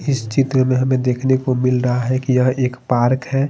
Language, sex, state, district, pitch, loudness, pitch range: Hindi, male, Bihar, Patna, 130 Hz, -17 LUFS, 125-130 Hz